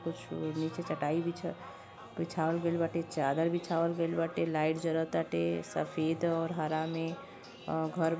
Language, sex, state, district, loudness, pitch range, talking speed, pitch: Bhojpuri, male, Uttar Pradesh, Gorakhpur, -33 LUFS, 160-165 Hz, 155 wpm, 165 Hz